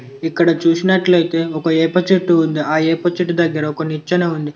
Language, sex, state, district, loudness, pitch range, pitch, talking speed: Telugu, male, Telangana, Komaram Bheem, -16 LUFS, 155-175 Hz, 165 Hz, 170 wpm